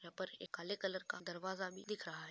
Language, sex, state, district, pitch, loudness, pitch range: Hindi, female, Bihar, Saran, 185 Hz, -45 LUFS, 175-190 Hz